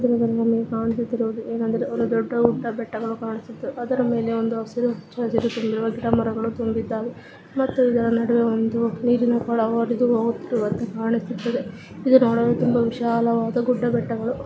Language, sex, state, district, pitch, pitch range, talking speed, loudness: Kannada, female, Karnataka, Belgaum, 230 Hz, 225-240 Hz, 55 wpm, -22 LUFS